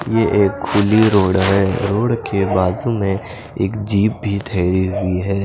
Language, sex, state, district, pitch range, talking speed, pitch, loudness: Hindi, male, Odisha, Khordha, 95-105 Hz, 165 wpm, 100 Hz, -17 LUFS